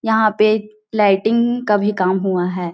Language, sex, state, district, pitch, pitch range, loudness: Hindi, female, Chhattisgarh, Bilaspur, 210 Hz, 190-220 Hz, -17 LUFS